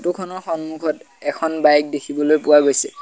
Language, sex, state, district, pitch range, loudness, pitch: Assamese, male, Assam, Sonitpur, 150-165 Hz, -18 LUFS, 155 Hz